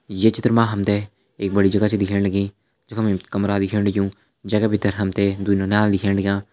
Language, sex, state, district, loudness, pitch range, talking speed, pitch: Hindi, male, Uttarakhand, Tehri Garhwal, -20 LUFS, 100-105 Hz, 210 wpm, 100 Hz